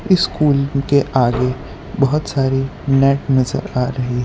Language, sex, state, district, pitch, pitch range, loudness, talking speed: Hindi, male, Gujarat, Valsad, 135 Hz, 130-140 Hz, -17 LUFS, 155 wpm